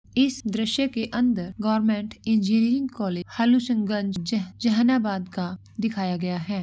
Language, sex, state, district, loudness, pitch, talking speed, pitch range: Hindi, female, Bihar, Jahanabad, -24 LUFS, 220 Hz, 135 wpm, 195-235 Hz